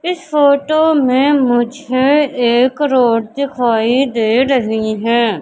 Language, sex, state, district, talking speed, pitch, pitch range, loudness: Hindi, female, Madhya Pradesh, Katni, 110 wpm, 255 Hz, 235-285 Hz, -13 LUFS